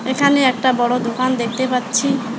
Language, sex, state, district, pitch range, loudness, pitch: Bengali, male, West Bengal, Alipurduar, 240-260 Hz, -17 LUFS, 255 Hz